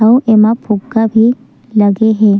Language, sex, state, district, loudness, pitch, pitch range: Chhattisgarhi, female, Chhattisgarh, Sukma, -11 LUFS, 220 Hz, 215-230 Hz